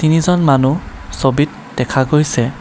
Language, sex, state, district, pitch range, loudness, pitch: Assamese, male, Assam, Kamrup Metropolitan, 130-155 Hz, -15 LUFS, 140 Hz